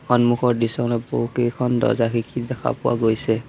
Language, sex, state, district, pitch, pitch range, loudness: Assamese, male, Assam, Sonitpur, 120 Hz, 115-125 Hz, -21 LUFS